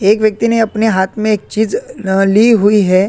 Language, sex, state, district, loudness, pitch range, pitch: Hindi, male, Chhattisgarh, Korba, -12 LUFS, 195-225 Hz, 215 Hz